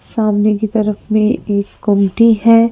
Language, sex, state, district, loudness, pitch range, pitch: Hindi, female, Madhya Pradesh, Bhopal, -14 LUFS, 205-225 Hz, 215 Hz